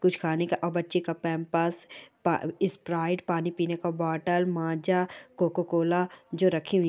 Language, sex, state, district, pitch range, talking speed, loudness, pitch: Hindi, female, Chhattisgarh, Kabirdham, 165-180 Hz, 165 wpm, -28 LUFS, 170 Hz